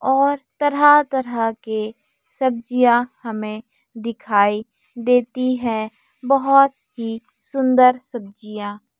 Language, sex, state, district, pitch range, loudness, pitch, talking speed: Hindi, female, Chhattisgarh, Raipur, 220-260 Hz, -19 LUFS, 245 Hz, 85 wpm